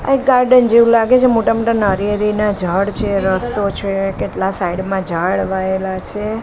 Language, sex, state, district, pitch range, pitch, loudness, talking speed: Gujarati, female, Gujarat, Gandhinagar, 190-230 Hz, 200 Hz, -15 LUFS, 175 wpm